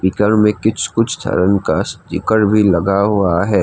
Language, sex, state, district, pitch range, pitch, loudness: Hindi, male, Assam, Kamrup Metropolitan, 95-105 Hz, 100 Hz, -15 LUFS